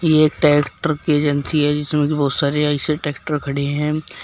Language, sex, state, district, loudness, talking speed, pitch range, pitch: Hindi, male, Uttar Pradesh, Shamli, -18 LUFS, 185 wpm, 145-150 Hz, 150 Hz